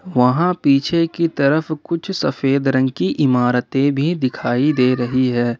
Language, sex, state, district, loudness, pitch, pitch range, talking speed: Hindi, male, Jharkhand, Ranchi, -17 LUFS, 135 Hz, 125-160 Hz, 150 wpm